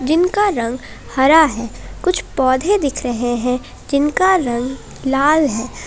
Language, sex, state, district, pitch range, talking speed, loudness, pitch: Hindi, female, Jharkhand, Palamu, 250-320 Hz, 135 wpm, -17 LUFS, 275 Hz